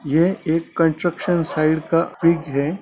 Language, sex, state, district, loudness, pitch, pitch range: Hindi, male, Bihar, Gaya, -20 LUFS, 165 Hz, 155-170 Hz